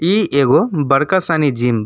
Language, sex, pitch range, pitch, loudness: Bhojpuri, male, 135-170 Hz, 145 Hz, -14 LUFS